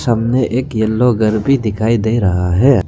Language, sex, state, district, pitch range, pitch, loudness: Hindi, male, Arunachal Pradesh, Lower Dibang Valley, 110-125 Hz, 115 Hz, -14 LUFS